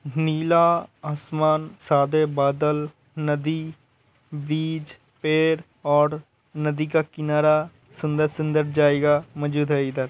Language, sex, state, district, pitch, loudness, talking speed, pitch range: Hindi, male, Uttar Pradesh, Hamirpur, 150 Hz, -23 LUFS, 90 wpm, 145-155 Hz